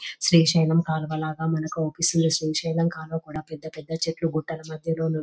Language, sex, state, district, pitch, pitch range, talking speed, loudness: Telugu, female, Telangana, Nalgonda, 160 Hz, 155-165 Hz, 160 wpm, -24 LUFS